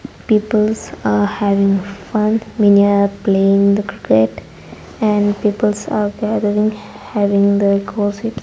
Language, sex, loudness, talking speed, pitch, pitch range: English, female, -16 LUFS, 115 wpm, 205 Hz, 200-210 Hz